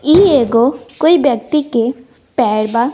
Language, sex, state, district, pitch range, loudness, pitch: Hindi, female, Bihar, West Champaran, 235-300 Hz, -13 LUFS, 250 Hz